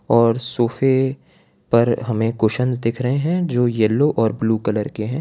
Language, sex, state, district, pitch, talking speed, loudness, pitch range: Hindi, male, Gujarat, Valsad, 120 Hz, 160 wpm, -19 LUFS, 110-130 Hz